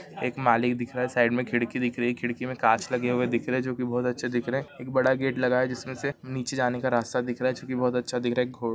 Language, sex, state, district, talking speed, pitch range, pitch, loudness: Hindi, male, Maharashtra, Solapur, 330 wpm, 120-130 Hz, 125 Hz, -27 LUFS